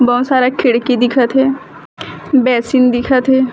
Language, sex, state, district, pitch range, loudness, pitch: Chhattisgarhi, female, Chhattisgarh, Bilaspur, 245-265 Hz, -13 LUFS, 255 Hz